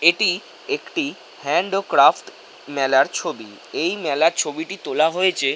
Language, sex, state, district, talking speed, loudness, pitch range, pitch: Bengali, male, West Bengal, North 24 Parganas, 130 wpm, -20 LUFS, 150-205 Hz, 175 Hz